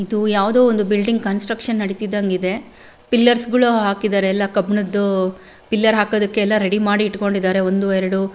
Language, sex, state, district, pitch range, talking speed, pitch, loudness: Kannada, female, Karnataka, Bellary, 195-220 Hz, 145 wpm, 205 Hz, -17 LUFS